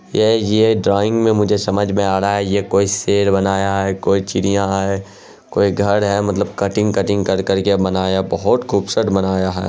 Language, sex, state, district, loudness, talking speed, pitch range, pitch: Hindi, male, Bihar, Araria, -16 LUFS, 200 wpm, 95-100 Hz, 100 Hz